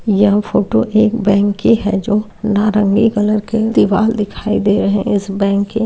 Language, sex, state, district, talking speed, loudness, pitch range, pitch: Hindi, male, Uttar Pradesh, Varanasi, 195 wpm, -14 LUFS, 200-215 Hz, 210 Hz